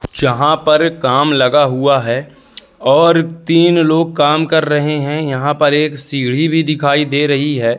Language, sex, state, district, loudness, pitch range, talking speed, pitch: Hindi, male, Madhya Pradesh, Katni, -13 LUFS, 140-160 Hz, 170 wpm, 150 Hz